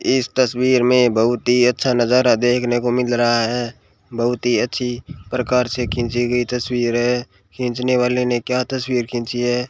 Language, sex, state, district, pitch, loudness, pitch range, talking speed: Hindi, male, Rajasthan, Bikaner, 125 Hz, -18 LUFS, 120-125 Hz, 175 wpm